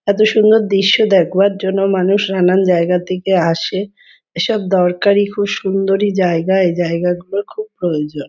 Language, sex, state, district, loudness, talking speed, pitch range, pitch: Bengali, female, West Bengal, Kolkata, -15 LUFS, 140 wpm, 180-200 Hz, 190 Hz